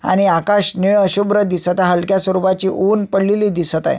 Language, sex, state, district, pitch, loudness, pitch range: Marathi, male, Maharashtra, Sindhudurg, 190 Hz, -15 LUFS, 185-205 Hz